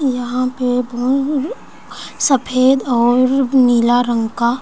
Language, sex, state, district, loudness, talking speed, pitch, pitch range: Hindi, female, Bihar, Saran, -15 LUFS, 105 wpm, 250 Hz, 240-265 Hz